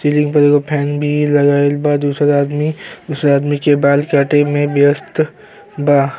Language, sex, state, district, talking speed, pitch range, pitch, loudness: Bhojpuri, male, Uttar Pradesh, Gorakhpur, 165 wpm, 145-150 Hz, 145 Hz, -14 LUFS